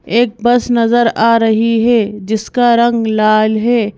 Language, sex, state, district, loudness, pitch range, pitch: Hindi, female, Madhya Pradesh, Bhopal, -12 LUFS, 220-235 Hz, 230 Hz